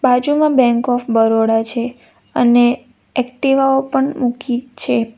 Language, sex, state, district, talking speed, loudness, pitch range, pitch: Gujarati, female, Gujarat, Valsad, 125 wpm, -16 LUFS, 235-265 Hz, 245 Hz